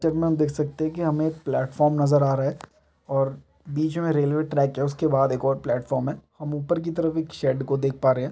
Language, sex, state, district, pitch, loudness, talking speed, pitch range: Hindi, male, Chhattisgarh, Rajnandgaon, 145 Hz, -24 LUFS, 275 wpm, 135-155 Hz